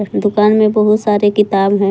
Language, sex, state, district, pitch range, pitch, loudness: Hindi, female, Jharkhand, Palamu, 205-210 Hz, 210 Hz, -12 LUFS